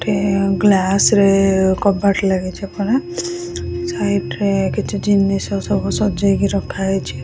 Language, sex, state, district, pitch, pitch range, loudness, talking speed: Odia, female, Odisha, Khordha, 195 Hz, 185-200 Hz, -17 LUFS, 125 wpm